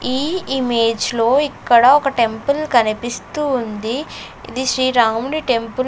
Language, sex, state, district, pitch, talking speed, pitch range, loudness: Telugu, female, Andhra Pradesh, Sri Satya Sai, 255 Hz, 125 wpm, 230-280 Hz, -17 LUFS